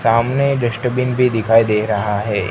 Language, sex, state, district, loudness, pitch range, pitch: Hindi, male, Gujarat, Gandhinagar, -16 LUFS, 105-125 Hz, 115 Hz